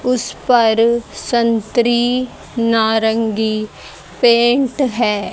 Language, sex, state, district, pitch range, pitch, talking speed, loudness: Hindi, female, Haryana, Jhajjar, 220-245 Hz, 235 Hz, 65 wpm, -16 LUFS